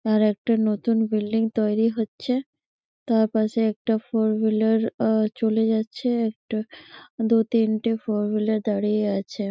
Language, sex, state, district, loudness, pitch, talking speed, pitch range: Bengali, female, West Bengal, Malda, -23 LUFS, 220 Hz, 100 wpm, 215-225 Hz